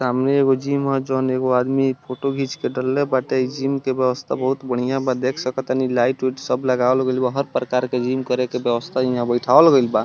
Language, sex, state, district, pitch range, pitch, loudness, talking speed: Bhojpuri, male, Bihar, East Champaran, 125-135 Hz, 130 Hz, -20 LUFS, 250 wpm